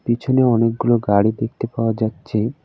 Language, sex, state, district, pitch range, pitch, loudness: Bengali, male, West Bengal, Alipurduar, 110-125 Hz, 115 Hz, -18 LUFS